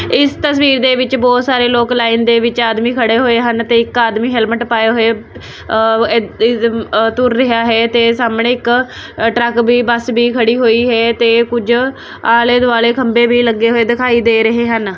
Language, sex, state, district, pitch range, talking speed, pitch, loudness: Punjabi, female, Punjab, Kapurthala, 230-245 Hz, 190 wpm, 235 Hz, -12 LUFS